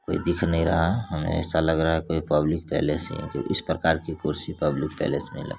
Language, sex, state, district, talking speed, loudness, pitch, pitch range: Hindi, male, Bihar, Saran, 235 wpm, -25 LUFS, 80 Hz, 80-85 Hz